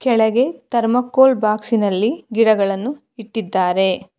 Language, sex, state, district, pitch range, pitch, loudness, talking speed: Kannada, female, Karnataka, Bangalore, 210-250 Hz, 225 Hz, -17 LUFS, 70 wpm